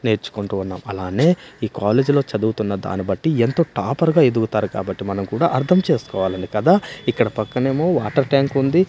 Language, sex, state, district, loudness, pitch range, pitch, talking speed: Telugu, male, Andhra Pradesh, Manyam, -19 LUFS, 100-145 Hz, 120 Hz, 160 wpm